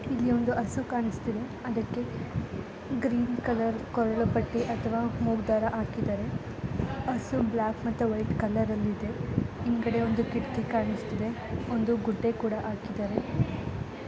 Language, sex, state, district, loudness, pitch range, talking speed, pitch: Kannada, female, Karnataka, Dharwad, -30 LUFS, 220-235 Hz, 125 wpm, 230 Hz